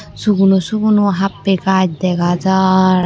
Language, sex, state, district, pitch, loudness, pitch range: Chakma, female, Tripura, Unakoti, 190 Hz, -14 LUFS, 185-195 Hz